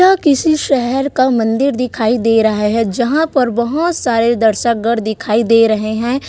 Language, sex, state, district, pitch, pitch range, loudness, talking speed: Hindi, female, Chhattisgarh, Korba, 235 Hz, 225-275 Hz, -14 LUFS, 170 wpm